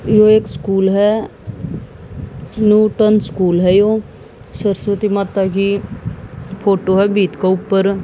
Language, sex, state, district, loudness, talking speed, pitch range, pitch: Hindi, female, Haryana, Jhajjar, -14 LUFS, 120 wpm, 190-210 Hz, 200 Hz